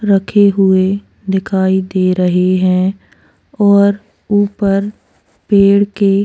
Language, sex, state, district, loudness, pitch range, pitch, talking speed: Hindi, female, Chhattisgarh, Korba, -13 LUFS, 190-200 Hz, 195 Hz, 105 wpm